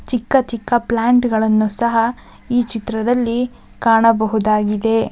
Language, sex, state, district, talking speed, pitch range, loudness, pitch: Kannada, female, Karnataka, Gulbarga, 95 wpm, 220-245 Hz, -17 LUFS, 230 Hz